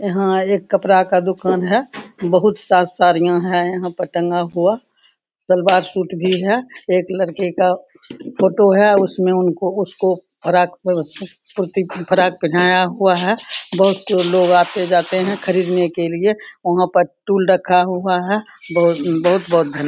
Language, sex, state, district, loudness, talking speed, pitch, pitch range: Hindi, female, Bihar, Samastipur, -16 LUFS, 155 wpm, 185 Hz, 180-195 Hz